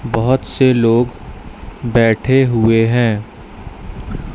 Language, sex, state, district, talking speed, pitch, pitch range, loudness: Hindi, male, Madhya Pradesh, Katni, 85 wpm, 115 Hz, 115-125 Hz, -14 LUFS